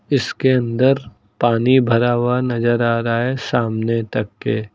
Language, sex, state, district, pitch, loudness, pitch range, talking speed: Hindi, male, Uttar Pradesh, Lucknow, 120 Hz, -18 LUFS, 115-125 Hz, 150 wpm